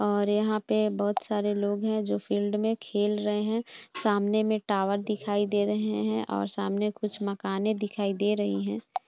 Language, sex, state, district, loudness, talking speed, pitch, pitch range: Hindi, female, Bihar, Bhagalpur, -28 LUFS, 185 wpm, 205 Hz, 200-215 Hz